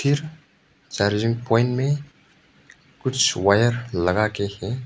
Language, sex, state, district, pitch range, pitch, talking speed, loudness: Hindi, male, Arunachal Pradesh, Papum Pare, 100-135 Hz, 120 Hz, 85 wpm, -22 LUFS